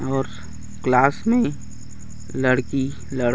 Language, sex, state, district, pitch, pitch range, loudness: Hindi, male, Chhattisgarh, Raigarh, 135 Hz, 130-140 Hz, -22 LUFS